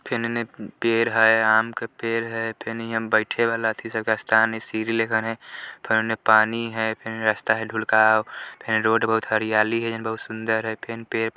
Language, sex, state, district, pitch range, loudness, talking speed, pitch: Bajjika, male, Bihar, Vaishali, 110-115 Hz, -22 LUFS, 205 wpm, 110 Hz